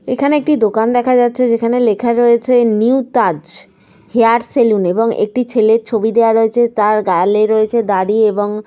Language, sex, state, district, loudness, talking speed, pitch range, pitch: Bengali, female, Jharkhand, Sahebganj, -13 LUFS, 165 wpm, 215-245 Hz, 230 Hz